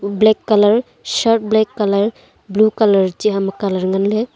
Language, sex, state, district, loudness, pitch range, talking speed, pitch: Wancho, female, Arunachal Pradesh, Longding, -16 LUFS, 200-220 Hz, 205 wpm, 210 Hz